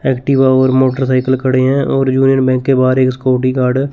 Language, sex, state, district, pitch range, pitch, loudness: Hindi, male, Chandigarh, Chandigarh, 130-135 Hz, 130 Hz, -12 LUFS